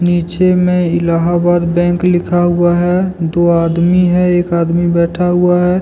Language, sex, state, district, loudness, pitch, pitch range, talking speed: Hindi, male, Jharkhand, Deoghar, -12 LUFS, 175 Hz, 170-180 Hz, 155 wpm